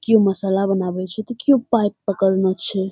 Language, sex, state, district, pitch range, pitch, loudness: Maithili, female, Bihar, Saharsa, 190-220 Hz, 195 Hz, -19 LUFS